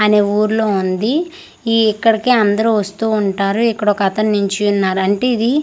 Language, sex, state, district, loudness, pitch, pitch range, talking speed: Telugu, female, Andhra Pradesh, Manyam, -15 LUFS, 215 Hz, 205-225 Hz, 130 wpm